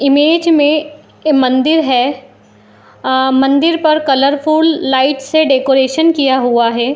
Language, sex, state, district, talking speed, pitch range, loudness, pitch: Hindi, female, Bihar, Madhepura, 130 wpm, 260-310 Hz, -12 LUFS, 275 Hz